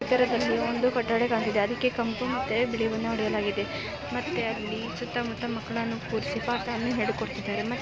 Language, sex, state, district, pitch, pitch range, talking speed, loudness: Kannada, female, Karnataka, Mysore, 235 Hz, 225-245 Hz, 155 wpm, -28 LUFS